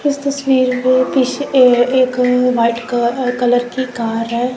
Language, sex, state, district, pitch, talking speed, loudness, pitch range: Hindi, female, Punjab, Kapurthala, 250 Hz, 155 wpm, -15 LUFS, 245-260 Hz